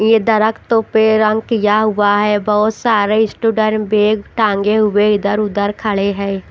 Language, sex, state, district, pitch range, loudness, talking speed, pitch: Hindi, female, Haryana, Jhajjar, 205-220 Hz, -14 LUFS, 145 wpm, 215 Hz